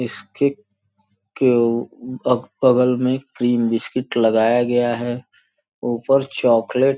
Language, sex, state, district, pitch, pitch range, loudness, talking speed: Hindi, male, Uttar Pradesh, Gorakhpur, 120 Hz, 115-130 Hz, -19 LUFS, 95 wpm